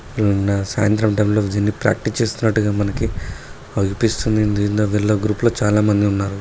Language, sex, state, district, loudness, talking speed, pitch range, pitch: Telugu, male, Telangana, Karimnagar, -18 LUFS, 120 wpm, 100-110 Hz, 105 Hz